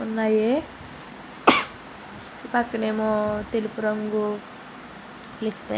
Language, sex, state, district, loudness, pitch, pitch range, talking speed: Telugu, female, Andhra Pradesh, Srikakulam, -24 LUFS, 220 Hz, 215-225 Hz, 75 wpm